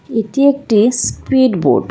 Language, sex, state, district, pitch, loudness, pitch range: Bengali, female, West Bengal, Kolkata, 255 Hz, -14 LUFS, 225-275 Hz